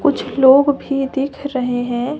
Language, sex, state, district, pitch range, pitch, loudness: Hindi, female, Jharkhand, Deoghar, 260-285 Hz, 275 Hz, -16 LUFS